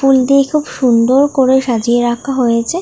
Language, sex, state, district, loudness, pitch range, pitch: Bengali, female, West Bengal, North 24 Parganas, -12 LUFS, 240-275 Hz, 260 Hz